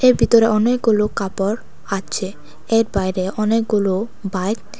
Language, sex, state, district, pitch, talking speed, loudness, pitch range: Bengali, female, Tripura, West Tripura, 210 Hz, 125 wpm, -19 LUFS, 195-225 Hz